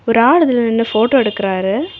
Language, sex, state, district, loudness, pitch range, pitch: Tamil, female, Tamil Nadu, Kanyakumari, -14 LUFS, 215-265 Hz, 230 Hz